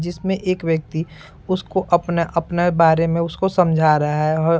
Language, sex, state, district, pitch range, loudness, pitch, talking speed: Hindi, male, Bihar, Saran, 160-180 Hz, -19 LUFS, 170 Hz, 185 wpm